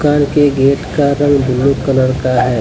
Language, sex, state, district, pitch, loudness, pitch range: Hindi, male, Jharkhand, Deoghar, 140 Hz, -13 LUFS, 130-145 Hz